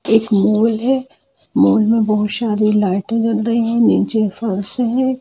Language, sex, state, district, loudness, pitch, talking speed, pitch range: Hindi, female, Jharkhand, Jamtara, -16 LUFS, 225 Hz, 160 wpm, 210-230 Hz